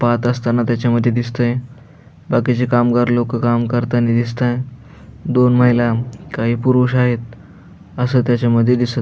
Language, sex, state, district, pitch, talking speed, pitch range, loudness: Marathi, male, Maharashtra, Aurangabad, 120 Hz, 125 wpm, 120-125 Hz, -16 LUFS